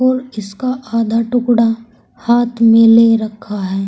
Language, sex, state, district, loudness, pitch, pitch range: Hindi, female, Uttar Pradesh, Saharanpur, -13 LUFS, 230 Hz, 225-240 Hz